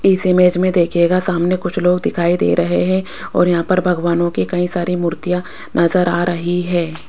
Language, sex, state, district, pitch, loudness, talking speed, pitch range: Hindi, female, Rajasthan, Jaipur, 175 Hz, -16 LUFS, 195 wpm, 170-180 Hz